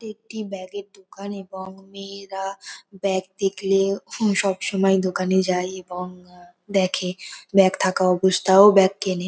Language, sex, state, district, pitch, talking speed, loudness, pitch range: Bengali, female, West Bengal, North 24 Parganas, 195 Hz, 130 wpm, -21 LUFS, 185-195 Hz